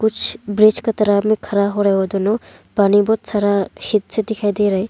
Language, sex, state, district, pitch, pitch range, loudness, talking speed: Hindi, female, Arunachal Pradesh, Longding, 205 Hz, 200-215 Hz, -17 LUFS, 220 wpm